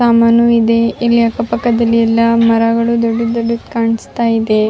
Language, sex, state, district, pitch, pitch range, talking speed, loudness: Kannada, female, Karnataka, Raichur, 230 Hz, 230-235 Hz, 140 wpm, -13 LUFS